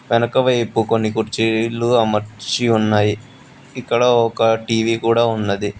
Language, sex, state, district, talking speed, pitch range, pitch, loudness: Telugu, male, Telangana, Hyderabad, 105 wpm, 110-120 Hz, 115 Hz, -17 LUFS